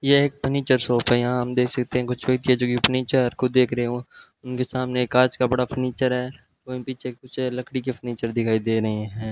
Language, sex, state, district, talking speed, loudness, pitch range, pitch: Hindi, male, Rajasthan, Bikaner, 245 wpm, -23 LUFS, 120-130 Hz, 125 Hz